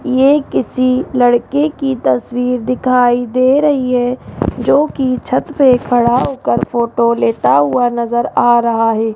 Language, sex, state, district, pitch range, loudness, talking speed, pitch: Hindi, female, Rajasthan, Jaipur, 240-265 Hz, -13 LUFS, 145 wpm, 250 Hz